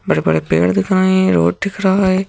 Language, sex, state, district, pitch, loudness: Hindi, female, Madhya Pradesh, Bhopal, 185 Hz, -15 LUFS